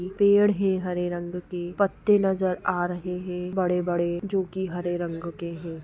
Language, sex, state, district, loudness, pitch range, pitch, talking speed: Hindi, female, Jharkhand, Sahebganj, -26 LUFS, 175-190 Hz, 180 Hz, 185 wpm